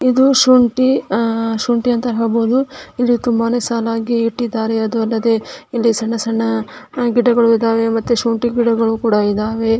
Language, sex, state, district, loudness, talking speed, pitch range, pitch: Kannada, female, Karnataka, Dharwad, -16 LUFS, 130 wpm, 225-240 Hz, 230 Hz